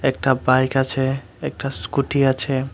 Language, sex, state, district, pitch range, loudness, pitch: Bengali, male, Tripura, West Tripura, 130-135 Hz, -20 LUFS, 135 Hz